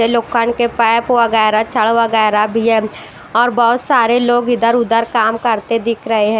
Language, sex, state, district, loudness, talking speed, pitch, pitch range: Hindi, female, Bihar, West Champaran, -14 LUFS, 170 wpm, 230 Hz, 220-240 Hz